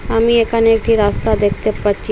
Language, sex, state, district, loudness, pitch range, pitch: Bengali, female, Assam, Hailakandi, -14 LUFS, 205-225 Hz, 220 Hz